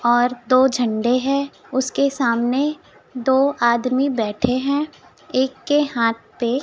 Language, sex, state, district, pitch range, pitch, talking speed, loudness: Hindi, female, Chhattisgarh, Raipur, 240-275 Hz, 255 Hz, 125 wpm, -20 LUFS